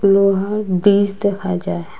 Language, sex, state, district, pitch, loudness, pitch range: Bengali, female, Assam, Hailakandi, 200 Hz, -17 LUFS, 190-205 Hz